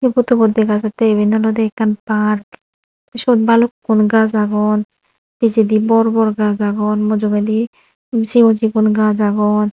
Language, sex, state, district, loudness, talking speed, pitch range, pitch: Chakma, female, Tripura, Unakoti, -14 LUFS, 125 wpm, 210-225 Hz, 220 Hz